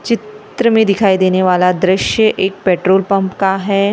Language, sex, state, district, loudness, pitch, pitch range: Hindi, female, Maharashtra, Gondia, -13 LUFS, 195 Hz, 185-210 Hz